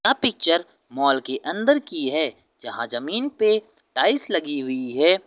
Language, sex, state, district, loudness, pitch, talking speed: Hindi, male, Uttar Pradesh, Lucknow, -20 LUFS, 195 Hz, 160 wpm